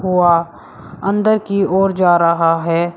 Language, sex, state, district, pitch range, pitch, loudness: Hindi, male, Uttar Pradesh, Shamli, 170-195 Hz, 180 Hz, -15 LUFS